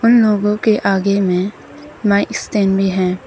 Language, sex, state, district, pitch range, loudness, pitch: Hindi, female, Arunachal Pradesh, Papum Pare, 195-210 Hz, -16 LUFS, 200 Hz